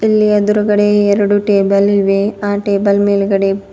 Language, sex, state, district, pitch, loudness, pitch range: Kannada, female, Karnataka, Bidar, 205 Hz, -13 LUFS, 200-205 Hz